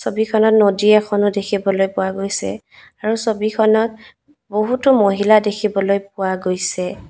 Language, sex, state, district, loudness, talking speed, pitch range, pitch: Assamese, female, Assam, Kamrup Metropolitan, -17 LUFS, 110 wpm, 195-220 Hz, 205 Hz